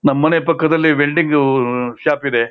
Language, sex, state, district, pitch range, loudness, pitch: Kannada, male, Karnataka, Shimoga, 135-160 Hz, -15 LUFS, 145 Hz